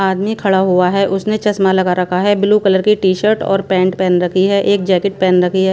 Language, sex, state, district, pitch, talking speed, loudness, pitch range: Hindi, female, Punjab, Pathankot, 190 Hz, 240 wpm, -14 LUFS, 185-200 Hz